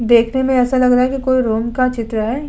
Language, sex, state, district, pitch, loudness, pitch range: Hindi, female, Uttar Pradesh, Budaun, 250 Hz, -15 LUFS, 230-260 Hz